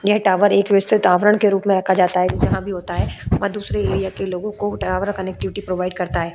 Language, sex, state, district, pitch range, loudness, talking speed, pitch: Hindi, female, Uttar Pradesh, Budaun, 180-205 Hz, -19 LUFS, 245 wpm, 190 Hz